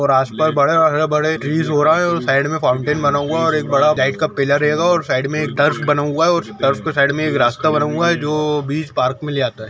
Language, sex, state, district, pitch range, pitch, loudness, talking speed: Hindi, male, Chhattisgarh, Sukma, 140-155 Hz, 150 Hz, -16 LUFS, 270 wpm